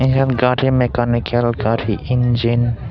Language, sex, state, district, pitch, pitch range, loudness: Chakma, male, Tripura, Dhalai, 120 Hz, 120-125 Hz, -17 LUFS